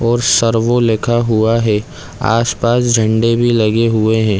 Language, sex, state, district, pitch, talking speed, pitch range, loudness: Hindi, male, Chhattisgarh, Korba, 115 Hz, 150 wpm, 110-120 Hz, -13 LUFS